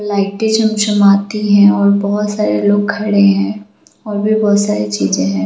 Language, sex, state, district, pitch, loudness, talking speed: Hindi, female, Jharkhand, Jamtara, 200 Hz, -13 LUFS, 165 wpm